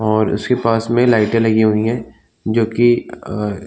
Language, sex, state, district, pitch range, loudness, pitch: Hindi, male, Chhattisgarh, Bilaspur, 110-115 Hz, -16 LUFS, 110 Hz